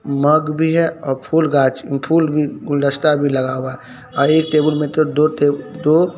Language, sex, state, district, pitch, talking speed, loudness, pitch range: Hindi, male, Bihar, Katihar, 150 Hz, 165 wpm, -16 LUFS, 140-155 Hz